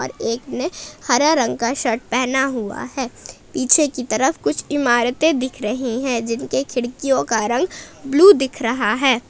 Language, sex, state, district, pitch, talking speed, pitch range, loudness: Hindi, female, Jharkhand, Palamu, 255 Hz, 170 wpm, 235-275 Hz, -18 LUFS